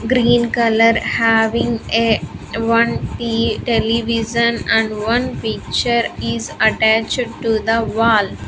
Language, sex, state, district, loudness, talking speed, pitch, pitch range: English, female, Andhra Pradesh, Sri Satya Sai, -16 LUFS, 105 wpm, 230 Hz, 225-235 Hz